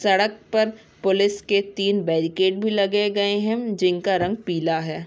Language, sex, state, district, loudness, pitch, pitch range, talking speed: Hindi, female, Uttarakhand, Tehri Garhwal, -22 LUFS, 200 Hz, 180-210 Hz, 165 wpm